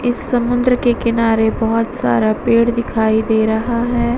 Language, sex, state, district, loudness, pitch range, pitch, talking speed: Hindi, female, Bihar, Vaishali, -16 LUFS, 220-240 Hz, 235 Hz, 155 wpm